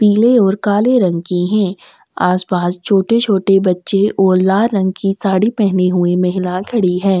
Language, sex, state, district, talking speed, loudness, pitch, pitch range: Hindi, female, Chhattisgarh, Sukma, 165 wpm, -14 LUFS, 195 Hz, 180-205 Hz